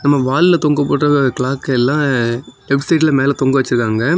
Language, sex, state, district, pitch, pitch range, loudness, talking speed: Tamil, male, Tamil Nadu, Kanyakumari, 135 Hz, 130-145 Hz, -15 LUFS, 155 wpm